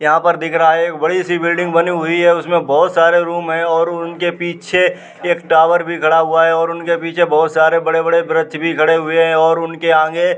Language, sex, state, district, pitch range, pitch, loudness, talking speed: Hindi, male, Uttar Pradesh, Muzaffarnagar, 160-170 Hz, 165 Hz, -14 LUFS, 235 wpm